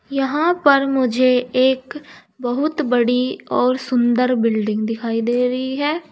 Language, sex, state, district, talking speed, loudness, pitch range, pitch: Hindi, female, Uttar Pradesh, Saharanpur, 125 wpm, -18 LUFS, 245-275 Hz, 255 Hz